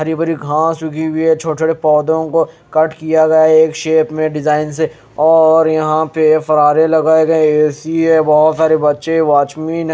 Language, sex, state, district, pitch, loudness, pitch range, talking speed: Hindi, male, Haryana, Jhajjar, 160 Hz, -13 LUFS, 155-160 Hz, 195 wpm